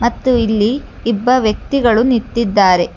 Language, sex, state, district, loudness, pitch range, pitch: Kannada, female, Karnataka, Bangalore, -14 LUFS, 215-250 Hz, 235 Hz